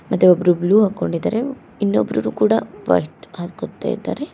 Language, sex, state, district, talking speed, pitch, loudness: Kannada, female, Karnataka, Koppal, 125 wpm, 175 Hz, -19 LUFS